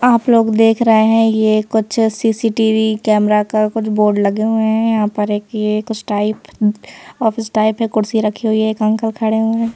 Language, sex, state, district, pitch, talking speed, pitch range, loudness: Hindi, female, Madhya Pradesh, Bhopal, 220 Hz, 195 wpm, 215-225 Hz, -15 LUFS